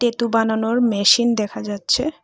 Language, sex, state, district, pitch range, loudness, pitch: Bengali, female, Tripura, West Tripura, 210-240 Hz, -18 LUFS, 230 Hz